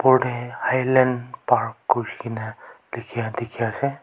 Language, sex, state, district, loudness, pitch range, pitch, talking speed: Nagamese, male, Nagaland, Kohima, -23 LUFS, 115-130 Hz, 120 Hz, 120 wpm